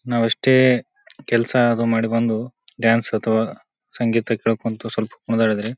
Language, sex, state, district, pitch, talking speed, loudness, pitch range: Kannada, male, Karnataka, Bijapur, 115 Hz, 115 wpm, -20 LUFS, 115-120 Hz